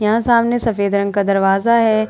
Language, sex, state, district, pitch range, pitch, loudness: Hindi, female, Bihar, Vaishali, 200-230 Hz, 215 Hz, -15 LUFS